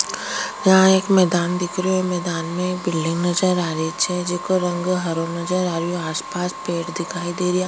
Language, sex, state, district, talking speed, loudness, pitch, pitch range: Rajasthani, female, Rajasthan, Churu, 170 wpm, -21 LUFS, 180 Hz, 175-180 Hz